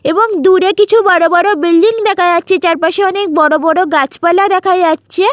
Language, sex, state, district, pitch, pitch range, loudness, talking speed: Bengali, female, West Bengal, Jalpaiguri, 365 Hz, 335-395 Hz, -10 LUFS, 135 wpm